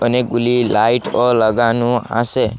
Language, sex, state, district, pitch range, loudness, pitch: Bengali, male, Assam, Hailakandi, 115-120 Hz, -15 LUFS, 120 Hz